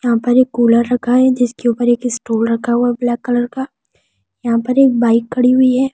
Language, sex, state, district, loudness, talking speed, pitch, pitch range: Hindi, female, Delhi, New Delhi, -14 LUFS, 230 wpm, 240 Hz, 235-250 Hz